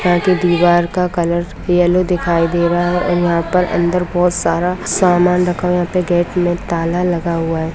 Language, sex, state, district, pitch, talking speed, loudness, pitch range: Hindi, female, Bihar, Madhepura, 175 Hz, 195 wpm, -15 LUFS, 170-180 Hz